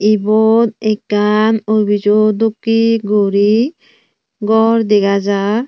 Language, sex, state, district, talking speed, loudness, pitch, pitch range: Chakma, female, Tripura, Unakoti, 85 wpm, -13 LUFS, 215 Hz, 210-225 Hz